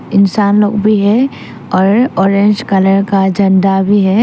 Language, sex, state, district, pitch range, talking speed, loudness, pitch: Hindi, female, Arunachal Pradesh, Papum Pare, 195-210 Hz, 155 wpm, -11 LUFS, 200 Hz